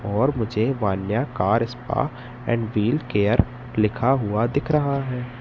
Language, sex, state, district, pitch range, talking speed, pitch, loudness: Hindi, male, Madhya Pradesh, Katni, 105-130 Hz, 145 wpm, 120 Hz, -23 LUFS